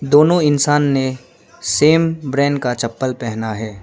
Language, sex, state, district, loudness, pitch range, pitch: Hindi, male, Arunachal Pradesh, Lower Dibang Valley, -16 LUFS, 125-150 Hz, 140 Hz